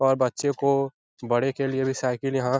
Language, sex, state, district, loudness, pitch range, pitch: Hindi, male, Bihar, Jahanabad, -25 LUFS, 130-135 Hz, 135 Hz